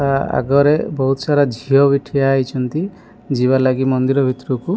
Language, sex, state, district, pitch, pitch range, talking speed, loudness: Odia, male, Odisha, Malkangiri, 135 Hz, 130-145 Hz, 140 wpm, -16 LUFS